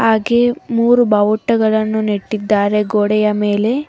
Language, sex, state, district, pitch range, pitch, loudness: Kannada, female, Karnataka, Bangalore, 210-235 Hz, 215 Hz, -15 LUFS